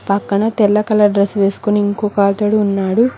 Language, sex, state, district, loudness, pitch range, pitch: Telugu, female, Telangana, Mahabubabad, -15 LUFS, 200-210 Hz, 205 Hz